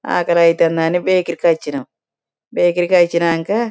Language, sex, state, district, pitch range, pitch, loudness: Telugu, female, Telangana, Karimnagar, 165-175 Hz, 170 Hz, -15 LUFS